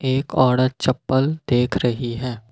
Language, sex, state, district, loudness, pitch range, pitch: Hindi, male, Assam, Kamrup Metropolitan, -20 LUFS, 120-130 Hz, 130 Hz